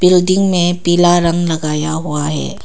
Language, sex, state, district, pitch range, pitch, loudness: Hindi, female, Arunachal Pradesh, Papum Pare, 155-175 Hz, 175 Hz, -14 LUFS